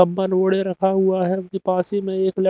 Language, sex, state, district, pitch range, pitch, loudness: Hindi, male, Haryana, Jhajjar, 185-190 Hz, 190 Hz, -20 LUFS